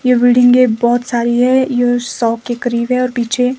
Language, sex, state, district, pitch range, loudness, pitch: Hindi, female, Himachal Pradesh, Shimla, 240-250 Hz, -13 LUFS, 245 Hz